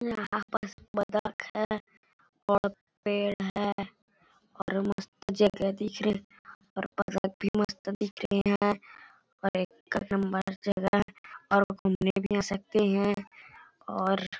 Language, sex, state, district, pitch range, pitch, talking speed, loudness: Hindi, male, Chhattisgarh, Bilaspur, 195-205 Hz, 200 Hz, 120 wpm, -30 LUFS